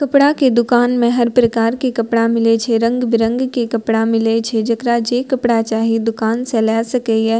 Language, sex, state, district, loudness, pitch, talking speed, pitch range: Maithili, female, Bihar, Purnia, -15 LUFS, 230 Hz, 195 wpm, 225-245 Hz